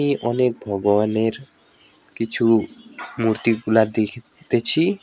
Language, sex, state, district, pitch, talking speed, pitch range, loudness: Bengali, male, West Bengal, Alipurduar, 115 Hz, 60 wpm, 110-135 Hz, -19 LUFS